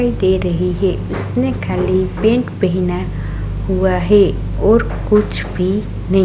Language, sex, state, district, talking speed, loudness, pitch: Hindi, female, Uttarakhand, Tehri Garhwal, 125 wpm, -16 LUFS, 185 Hz